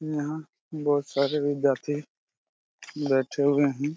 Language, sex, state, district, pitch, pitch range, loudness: Hindi, male, Jharkhand, Jamtara, 145 Hz, 140-150 Hz, -26 LUFS